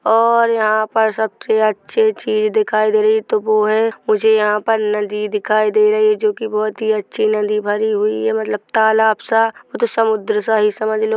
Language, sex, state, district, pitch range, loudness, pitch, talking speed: Hindi, male, Chhattisgarh, Korba, 215-220 Hz, -16 LUFS, 215 Hz, 205 wpm